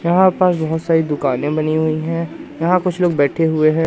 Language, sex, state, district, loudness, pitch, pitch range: Hindi, male, Madhya Pradesh, Umaria, -17 LUFS, 160 Hz, 155-175 Hz